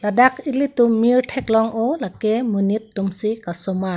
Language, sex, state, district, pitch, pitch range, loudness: Karbi, female, Assam, Karbi Anglong, 225 Hz, 200-250 Hz, -19 LUFS